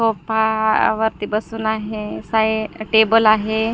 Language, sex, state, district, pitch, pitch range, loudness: Marathi, female, Maharashtra, Gondia, 220 Hz, 215-220 Hz, -18 LUFS